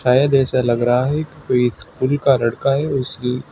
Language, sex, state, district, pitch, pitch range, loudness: Hindi, male, Uttar Pradesh, Shamli, 130 Hz, 125-140 Hz, -18 LUFS